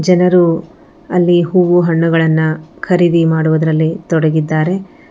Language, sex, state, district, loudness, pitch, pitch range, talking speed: Kannada, female, Karnataka, Bangalore, -13 LUFS, 165 Hz, 160-180 Hz, 80 wpm